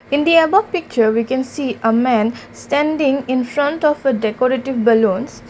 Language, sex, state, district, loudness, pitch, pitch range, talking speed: English, female, Assam, Kamrup Metropolitan, -16 LUFS, 260 Hz, 235-295 Hz, 175 wpm